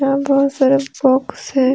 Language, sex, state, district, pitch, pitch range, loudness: Hindi, female, Jharkhand, Deoghar, 275 Hz, 265-275 Hz, -16 LUFS